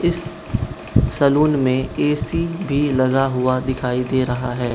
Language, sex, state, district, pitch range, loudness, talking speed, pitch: Hindi, male, Manipur, Imphal West, 130-150 Hz, -19 LUFS, 140 wpm, 130 Hz